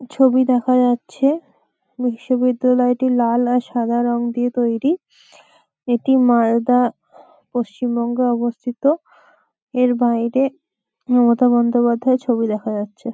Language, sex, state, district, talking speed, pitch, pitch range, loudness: Bengali, female, West Bengal, Malda, 105 wpm, 245 Hz, 235-255 Hz, -18 LUFS